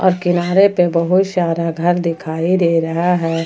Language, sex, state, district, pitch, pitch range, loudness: Hindi, female, Jharkhand, Ranchi, 175 Hz, 165-180 Hz, -16 LUFS